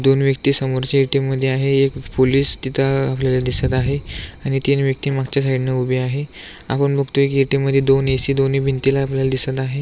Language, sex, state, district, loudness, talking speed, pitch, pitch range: Marathi, male, Maharashtra, Aurangabad, -18 LUFS, 200 wpm, 135 Hz, 130-135 Hz